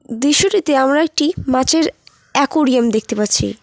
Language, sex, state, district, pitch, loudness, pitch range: Bengali, female, West Bengal, Cooch Behar, 275 Hz, -15 LUFS, 235-315 Hz